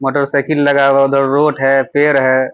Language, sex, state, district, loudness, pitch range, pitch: Hindi, male, Bihar, Purnia, -12 LUFS, 135-145 Hz, 140 Hz